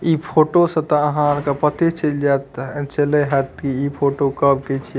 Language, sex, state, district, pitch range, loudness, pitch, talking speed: Maithili, male, Bihar, Madhepura, 140-150 Hz, -18 LUFS, 145 Hz, 230 wpm